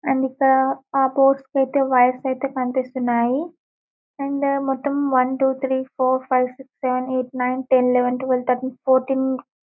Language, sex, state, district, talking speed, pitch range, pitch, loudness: Telugu, female, Telangana, Karimnagar, 150 wpm, 255-270 Hz, 260 Hz, -20 LUFS